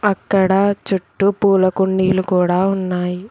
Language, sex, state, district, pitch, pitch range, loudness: Telugu, female, Telangana, Hyderabad, 190 Hz, 185-195 Hz, -17 LUFS